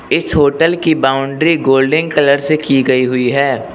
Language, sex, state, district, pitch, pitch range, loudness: Hindi, male, Arunachal Pradesh, Lower Dibang Valley, 140 Hz, 135-155 Hz, -13 LUFS